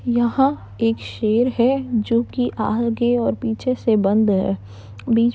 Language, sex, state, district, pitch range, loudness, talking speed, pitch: Hindi, female, Uttar Pradesh, Jalaun, 215-240 Hz, -20 LUFS, 180 wpm, 230 Hz